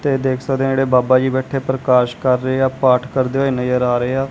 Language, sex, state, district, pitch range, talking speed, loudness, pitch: Punjabi, male, Punjab, Kapurthala, 125-135 Hz, 265 wpm, -17 LUFS, 130 Hz